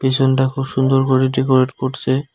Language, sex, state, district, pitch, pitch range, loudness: Bengali, male, West Bengal, Cooch Behar, 130 Hz, 130-135 Hz, -17 LUFS